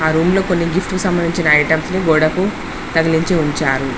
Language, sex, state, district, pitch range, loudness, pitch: Telugu, female, Telangana, Mahabubabad, 155-185 Hz, -16 LUFS, 165 Hz